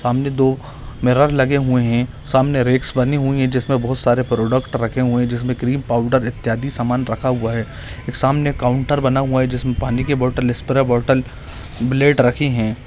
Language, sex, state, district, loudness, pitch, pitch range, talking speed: Hindi, male, Bihar, Gaya, -18 LUFS, 125 Hz, 120-135 Hz, 185 wpm